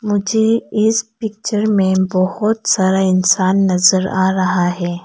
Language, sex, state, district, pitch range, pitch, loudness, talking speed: Hindi, female, Arunachal Pradesh, Lower Dibang Valley, 185-215 Hz, 190 Hz, -15 LUFS, 130 wpm